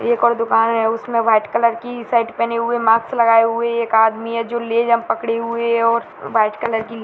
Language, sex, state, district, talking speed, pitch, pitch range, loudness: Hindi, male, Bihar, Jahanabad, 220 wpm, 230 Hz, 225-235 Hz, -17 LUFS